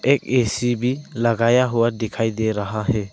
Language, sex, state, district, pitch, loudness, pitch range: Hindi, male, Arunachal Pradesh, Lower Dibang Valley, 115 Hz, -20 LUFS, 110-125 Hz